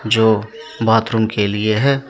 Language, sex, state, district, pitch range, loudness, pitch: Hindi, male, Jharkhand, Deoghar, 110-135 Hz, -16 LUFS, 110 Hz